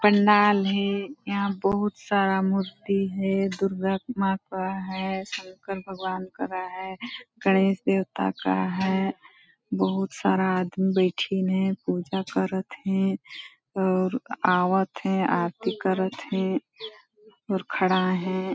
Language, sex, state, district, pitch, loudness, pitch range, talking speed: Hindi, female, Chhattisgarh, Balrampur, 190 Hz, -26 LUFS, 185-195 Hz, 115 wpm